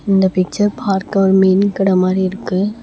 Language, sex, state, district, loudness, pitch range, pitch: Tamil, female, Tamil Nadu, Namakkal, -15 LUFS, 190-200 Hz, 195 Hz